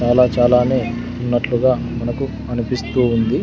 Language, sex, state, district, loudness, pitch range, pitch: Telugu, male, Andhra Pradesh, Sri Satya Sai, -18 LUFS, 120-125 Hz, 120 Hz